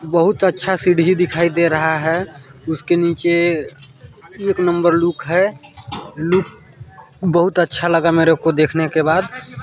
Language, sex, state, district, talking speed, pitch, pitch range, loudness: Hindi, male, Chhattisgarh, Balrampur, 135 wpm, 170 Hz, 155-175 Hz, -16 LUFS